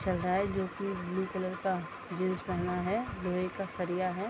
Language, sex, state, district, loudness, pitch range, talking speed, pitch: Hindi, female, Bihar, Gopalganj, -34 LUFS, 180-195 Hz, 210 wpm, 185 Hz